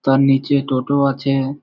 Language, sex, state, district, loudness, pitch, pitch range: Bengali, male, West Bengal, Malda, -17 LUFS, 135 Hz, 135-140 Hz